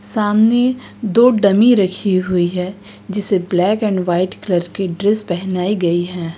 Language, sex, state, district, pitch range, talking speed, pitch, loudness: Hindi, female, Uttar Pradesh, Lucknow, 180-210 Hz, 150 wpm, 195 Hz, -15 LUFS